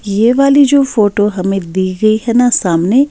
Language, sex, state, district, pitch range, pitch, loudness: Hindi, female, Bihar, Patna, 195-245 Hz, 215 Hz, -11 LUFS